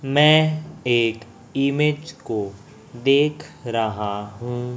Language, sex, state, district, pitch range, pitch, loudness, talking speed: Hindi, male, Chhattisgarh, Raipur, 115-150 Hz, 125 Hz, -21 LUFS, 90 wpm